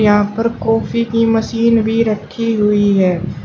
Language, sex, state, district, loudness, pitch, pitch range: Hindi, female, Uttar Pradesh, Shamli, -15 LUFS, 225 Hz, 210-230 Hz